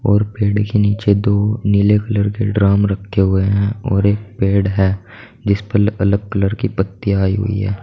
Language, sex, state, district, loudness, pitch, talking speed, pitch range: Hindi, male, Uttar Pradesh, Saharanpur, -16 LUFS, 100 Hz, 190 wpm, 100-105 Hz